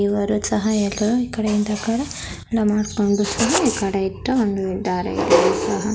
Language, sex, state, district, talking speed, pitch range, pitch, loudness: Kannada, female, Karnataka, Dharwad, 50 wpm, 200-225 Hz, 210 Hz, -20 LUFS